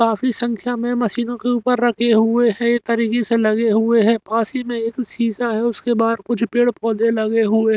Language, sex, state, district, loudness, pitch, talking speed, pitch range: Hindi, male, Haryana, Rohtak, -17 LUFS, 230 Hz, 225 wpm, 225-240 Hz